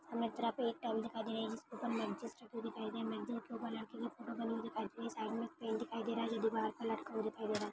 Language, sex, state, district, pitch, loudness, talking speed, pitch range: Hindi, female, Maharashtra, Dhule, 230 Hz, -42 LUFS, 295 wpm, 225-235 Hz